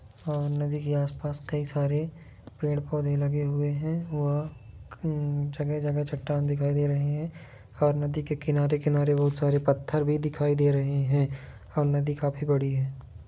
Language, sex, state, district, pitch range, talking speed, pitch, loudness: Hindi, male, Jharkhand, Jamtara, 140-150 Hz, 165 wpm, 145 Hz, -28 LUFS